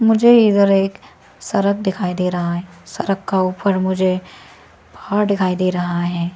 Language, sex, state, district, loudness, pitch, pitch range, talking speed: Hindi, female, Arunachal Pradesh, Lower Dibang Valley, -17 LUFS, 190 Hz, 180-200 Hz, 160 wpm